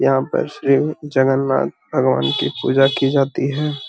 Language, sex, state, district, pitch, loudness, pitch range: Magahi, male, Bihar, Gaya, 135 Hz, -18 LUFS, 135-140 Hz